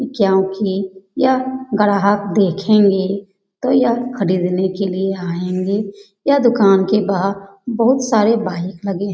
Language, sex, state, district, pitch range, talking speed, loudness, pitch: Hindi, female, Bihar, Jamui, 190-225 Hz, 125 wpm, -17 LUFS, 200 Hz